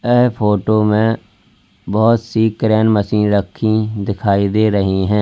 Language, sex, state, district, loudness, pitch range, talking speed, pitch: Hindi, male, Uttar Pradesh, Lalitpur, -15 LUFS, 105-110 Hz, 140 wpm, 110 Hz